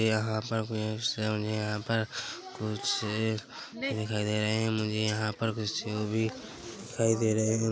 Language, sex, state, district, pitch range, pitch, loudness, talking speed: Hindi, male, Chhattisgarh, Bilaspur, 105-110 Hz, 110 Hz, -31 LUFS, 185 wpm